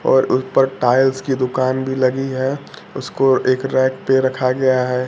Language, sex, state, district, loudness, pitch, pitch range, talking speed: Hindi, male, Bihar, Kaimur, -17 LUFS, 130 Hz, 130-135 Hz, 190 wpm